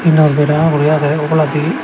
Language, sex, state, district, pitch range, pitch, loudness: Chakma, male, Tripura, Dhalai, 150-155 Hz, 150 Hz, -13 LUFS